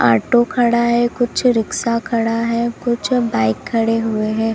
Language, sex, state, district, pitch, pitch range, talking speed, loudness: Hindi, female, Uttar Pradesh, Lalitpur, 235 Hz, 225-240 Hz, 160 wpm, -17 LUFS